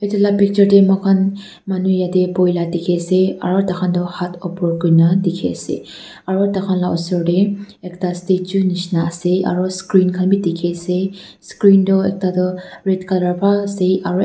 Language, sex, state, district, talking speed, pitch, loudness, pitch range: Nagamese, female, Nagaland, Dimapur, 195 wpm, 185 Hz, -17 LUFS, 180-195 Hz